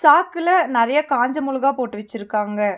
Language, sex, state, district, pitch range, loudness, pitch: Tamil, female, Tamil Nadu, Nilgiris, 215-300 Hz, -19 LUFS, 260 Hz